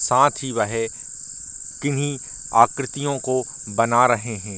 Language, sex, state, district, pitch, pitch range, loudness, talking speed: Hindi, male, Bihar, Darbhanga, 125 Hz, 115-140 Hz, -22 LUFS, 120 wpm